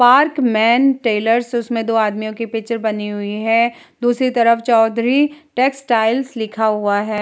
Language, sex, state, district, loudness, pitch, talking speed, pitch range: Hindi, female, Bihar, Vaishali, -17 LUFS, 230 Hz, 140 wpm, 220-250 Hz